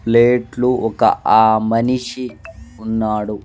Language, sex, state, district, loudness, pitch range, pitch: Telugu, male, Andhra Pradesh, Sri Satya Sai, -16 LUFS, 110-125 Hz, 115 Hz